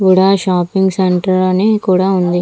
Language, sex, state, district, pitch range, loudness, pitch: Telugu, female, Andhra Pradesh, Visakhapatnam, 185-195 Hz, -13 LUFS, 185 Hz